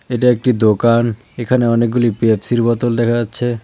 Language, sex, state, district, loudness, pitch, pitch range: Bengali, male, West Bengal, Cooch Behar, -15 LUFS, 120 Hz, 115-120 Hz